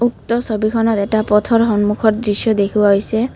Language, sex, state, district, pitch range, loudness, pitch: Assamese, female, Assam, Kamrup Metropolitan, 210-230 Hz, -15 LUFS, 220 Hz